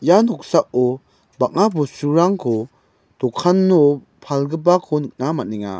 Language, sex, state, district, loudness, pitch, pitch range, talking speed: Garo, male, Meghalaya, West Garo Hills, -18 LUFS, 145 Hz, 125-175 Hz, 85 wpm